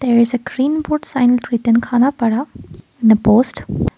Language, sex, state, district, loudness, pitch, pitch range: English, female, Assam, Kamrup Metropolitan, -15 LUFS, 245 Hz, 230-265 Hz